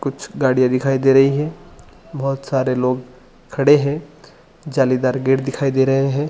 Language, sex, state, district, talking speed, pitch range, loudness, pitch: Hindi, male, Chhattisgarh, Bilaspur, 170 wpm, 130-140 Hz, -18 LUFS, 135 Hz